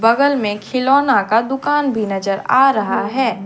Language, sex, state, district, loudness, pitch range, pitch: Hindi, female, Jharkhand, Deoghar, -16 LUFS, 205-270 Hz, 235 Hz